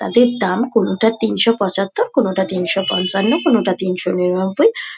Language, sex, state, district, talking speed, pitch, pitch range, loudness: Bengali, female, West Bengal, Dakshin Dinajpur, 130 wpm, 195 Hz, 185-230 Hz, -17 LUFS